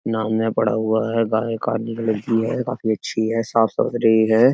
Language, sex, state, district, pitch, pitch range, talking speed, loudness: Hindi, male, Uttar Pradesh, Etah, 110 Hz, 110-115 Hz, 210 wpm, -20 LUFS